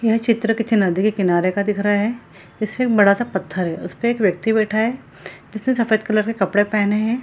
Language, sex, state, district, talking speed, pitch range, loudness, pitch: Hindi, female, Bihar, Samastipur, 240 wpm, 200-230 Hz, -19 LUFS, 215 Hz